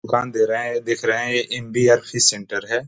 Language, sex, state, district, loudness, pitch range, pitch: Hindi, male, Bihar, East Champaran, -19 LUFS, 115-120 Hz, 120 Hz